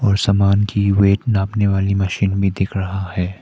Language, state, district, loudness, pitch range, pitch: Hindi, Arunachal Pradesh, Papum Pare, -17 LUFS, 95-100 Hz, 100 Hz